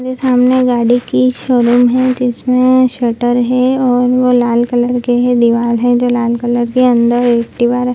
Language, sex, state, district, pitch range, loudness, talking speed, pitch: Hindi, female, Bihar, Lakhisarai, 240-255 Hz, -12 LUFS, 190 wpm, 245 Hz